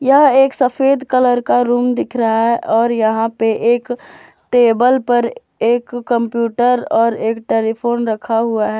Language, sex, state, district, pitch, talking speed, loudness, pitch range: Hindi, female, Jharkhand, Deoghar, 235 Hz, 155 wpm, -15 LUFS, 225-250 Hz